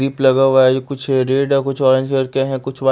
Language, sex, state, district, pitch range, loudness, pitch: Hindi, male, Punjab, Fazilka, 130-135 Hz, -15 LUFS, 135 Hz